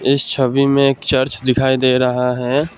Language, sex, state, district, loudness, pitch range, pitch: Hindi, male, Assam, Kamrup Metropolitan, -15 LUFS, 125-140 Hz, 130 Hz